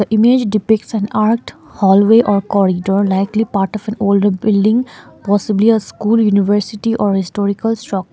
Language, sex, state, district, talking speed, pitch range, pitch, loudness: English, female, Sikkim, Gangtok, 155 wpm, 200-220 Hz, 210 Hz, -14 LUFS